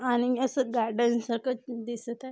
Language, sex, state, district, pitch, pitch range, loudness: Marathi, female, Maharashtra, Aurangabad, 240 Hz, 235-255 Hz, -29 LUFS